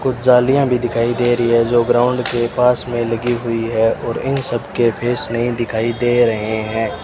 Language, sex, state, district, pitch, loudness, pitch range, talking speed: Hindi, male, Rajasthan, Bikaner, 120 Hz, -16 LUFS, 115-120 Hz, 205 wpm